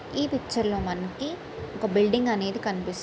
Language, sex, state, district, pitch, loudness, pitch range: Telugu, female, Andhra Pradesh, Srikakulam, 215 Hz, -27 LUFS, 195-240 Hz